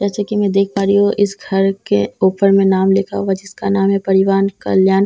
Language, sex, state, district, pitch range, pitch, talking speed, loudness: Hindi, female, Bihar, Katihar, 195-200 Hz, 195 Hz, 275 wpm, -15 LUFS